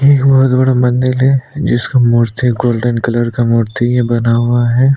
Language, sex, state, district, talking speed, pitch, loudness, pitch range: Hindi, male, Chhattisgarh, Sukma, 195 wpm, 120 Hz, -12 LUFS, 120-130 Hz